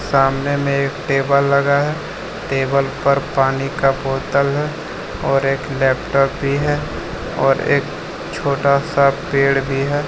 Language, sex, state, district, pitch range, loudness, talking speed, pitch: Hindi, male, Jharkhand, Deoghar, 135-140 Hz, -18 LUFS, 145 wpm, 140 Hz